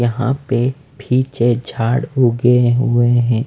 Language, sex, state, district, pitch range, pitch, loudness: Hindi, male, Bihar, Patna, 120-130 Hz, 125 Hz, -16 LUFS